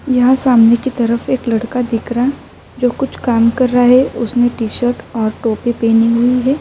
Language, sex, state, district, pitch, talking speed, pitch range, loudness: Urdu, female, Uttar Pradesh, Budaun, 245 Hz, 190 wpm, 230-255 Hz, -14 LUFS